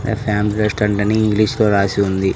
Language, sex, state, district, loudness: Telugu, male, Andhra Pradesh, Annamaya, -16 LUFS